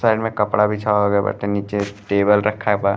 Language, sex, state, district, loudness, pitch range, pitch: Bhojpuri, male, Uttar Pradesh, Gorakhpur, -19 LUFS, 100-105 Hz, 105 Hz